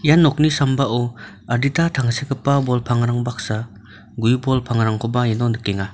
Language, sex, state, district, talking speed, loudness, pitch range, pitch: Garo, male, Meghalaya, North Garo Hills, 130 wpm, -19 LUFS, 115-135 Hz, 120 Hz